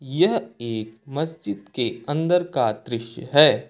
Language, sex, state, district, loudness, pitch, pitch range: Hindi, male, Uttar Pradesh, Lucknow, -23 LUFS, 135 Hz, 115-160 Hz